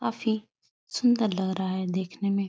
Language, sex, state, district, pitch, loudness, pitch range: Hindi, female, Uttar Pradesh, Etah, 200 Hz, -28 LUFS, 185-220 Hz